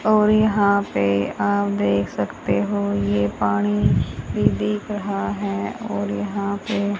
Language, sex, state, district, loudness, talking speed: Hindi, female, Haryana, Charkhi Dadri, -21 LUFS, 135 wpm